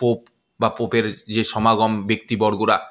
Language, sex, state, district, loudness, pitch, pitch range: Bengali, male, West Bengal, Malda, -20 LUFS, 110 Hz, 110-115 Hz